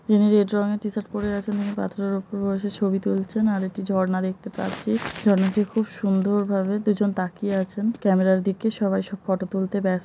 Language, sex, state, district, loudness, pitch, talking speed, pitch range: Bengali, male, West Bengal, Jhargram, -24 LUFS, 200 Hz, 190 wpm, 190-210 Hz